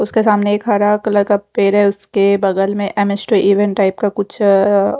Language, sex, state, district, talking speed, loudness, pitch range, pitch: Hindi, female, Odisha, Khordha, 215 wpm, -14 LUFS, 200-205 Hz, 205 Hz